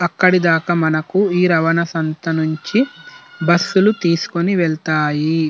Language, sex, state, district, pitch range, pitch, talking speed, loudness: Telugu, male, Telangana, Nalgonda, 160-185 Hz, 170 Hz, 100 wpm, -16 LUFS